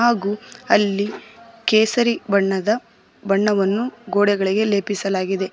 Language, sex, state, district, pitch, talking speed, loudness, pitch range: Kannada, female, Karnataka, Koppal, 205 Hz, 75 wpm, -20 LUFS, 195-230 Hz